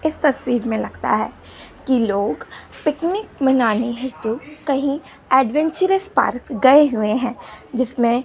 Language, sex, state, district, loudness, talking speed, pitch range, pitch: Hindi, female, Gujarat, Gandhinagar, -19 LUFS, 125 wpm, 235-300 Hz, 265 Hz